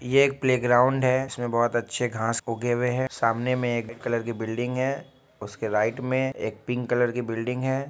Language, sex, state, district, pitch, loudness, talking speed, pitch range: Hindi, male, Bihar, Muzaffarpur, 125 Hz, -25 LUFS, 205 wpm, 115-130 Hz